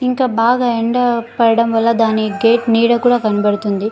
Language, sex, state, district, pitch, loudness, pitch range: Telugu, female, Andhra Pradesh, Guntur, 230 Hz, -14 LUFS, 220-240 Hz